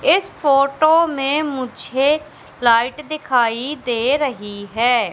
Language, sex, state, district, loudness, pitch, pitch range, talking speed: Hindi, female, Madhya Pradesh, Katni, -18 LUFS, 270 Hz, 240-300 Hz, 105 wpm